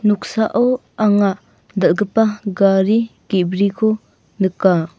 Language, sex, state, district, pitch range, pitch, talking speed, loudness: Garo, female, Meghalaya, North Garo Hills, 190-220 Hz, 200 Hz, 70 wpm, -17 LUFS